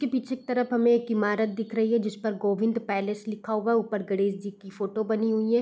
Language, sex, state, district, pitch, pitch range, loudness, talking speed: Hindi, female, Uttar Pradesh, Gorakhpur, 220 Hz, 205-230 Hz, -27 LUFS, 265 wpm